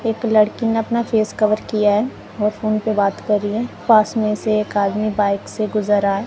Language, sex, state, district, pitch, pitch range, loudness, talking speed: Hindi, female, Punjab, Kapurthala, 215 Hz, 210-220 Hz, -18 LUFS, 240 wpm